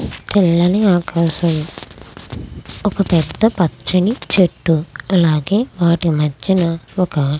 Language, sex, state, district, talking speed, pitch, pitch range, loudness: Telugu, female, Andhra Pradesh, Krishna, 90 wpm, 170 Hz, 160-185 Hz, -16 LUFS